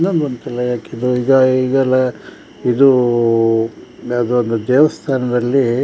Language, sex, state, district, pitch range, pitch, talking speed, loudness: Kannada, male, Karnataka, Dakshina Kannada, 120-135 Hz, 125 Hz, 50 wpm, -15 LUFS